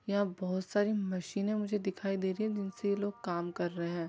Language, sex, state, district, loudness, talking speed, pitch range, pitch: Hindi, female, Bihar, Saran, -35 LUFS, 235 wpm, 185-205 Hz, 195 Hz